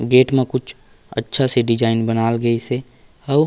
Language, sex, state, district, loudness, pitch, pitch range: Chhattisgarhi, male, Chhattisgarh, Raigarh, -19 LUFS, 120 Hz, 115-130 Hz